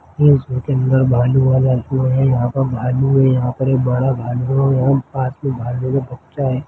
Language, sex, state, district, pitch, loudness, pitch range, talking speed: Hindi, male, Chhattisgarh, Jashpur, 130 Hz, -16 LUFS, 125-135 Hz, 180 wpm